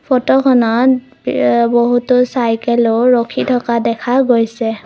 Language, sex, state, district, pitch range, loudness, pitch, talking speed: Assamese, female, Assam, Kamrup Metropolitan, 230-255 Hz, -13 LUFS, 240 Hz, 100 wpm